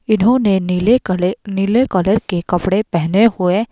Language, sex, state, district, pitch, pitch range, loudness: Hindi, female, Himachal Pradesh, Shimla, 195 Hz, 180-220 Hz, -15 LUFS